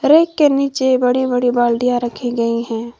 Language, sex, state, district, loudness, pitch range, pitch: Hindi, female, Jharkhand, Garhwa, -16 LUFS, 240-265 Hz, 245 Hz